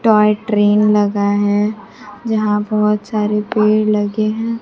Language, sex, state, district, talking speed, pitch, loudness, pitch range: Hindi, female, Bihar, Kaimur, 130 wpm, 210 Hz, -15 LUFS, 210-215 Hz